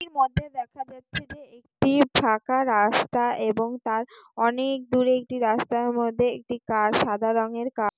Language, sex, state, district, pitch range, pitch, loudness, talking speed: Bengali, female, West Bengal, Jalpaiguri, 225-260 Hz, 240 Hz, -24 LUFS, 160 wpm